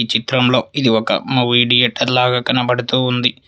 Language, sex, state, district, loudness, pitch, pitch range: Telugu, male, Telangana, Hyderabad, -15 LUFS, 125 Hz, 120-125 Hz